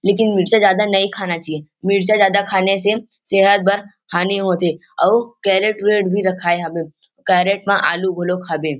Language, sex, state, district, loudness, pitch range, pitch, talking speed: Chhattisgarhi, male, Chhattisgarh, Rajnandgaon, -16 LUFS, 175-200 Hz, 195 Hz, 170 wpm